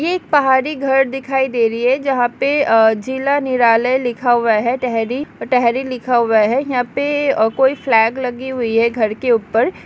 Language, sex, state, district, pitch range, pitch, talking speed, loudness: Hindi, female, Uttarakhand, Tehri Garhwal, 230-270 Hz, 250 Hz, 200 wpm, -16 LUFS